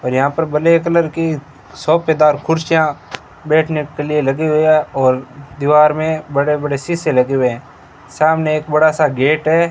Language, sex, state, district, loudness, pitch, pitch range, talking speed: Hindi, male, Rajasthan, Bikaner, -15 LUFS, 150 Hz, 140-160 Hz, 180 wpm